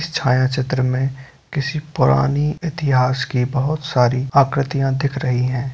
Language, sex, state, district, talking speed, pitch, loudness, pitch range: Hindi, male, Bihar, Begusarai, 135 wpm, 135 Hz, -19 LUFS, 130-145 Hz